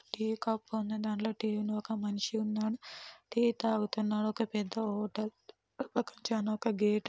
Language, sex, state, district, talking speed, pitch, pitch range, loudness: Telugu, female, Andhra Pradesh, Anantapur, 150 wpm, 215 Hz, 210-220 Hz, -34 LUFS